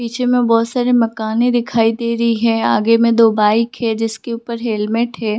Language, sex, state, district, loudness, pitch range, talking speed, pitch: Hindi, female, Jharkhand, Sahebganj, -16 LUFS, 225-235 Hz, 180 wpm, 230 Hz